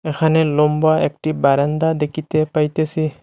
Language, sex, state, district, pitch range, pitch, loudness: Bengali, male, Assam, Hailakandi, 150-155 Hz, 155 Hz, -17 LUFS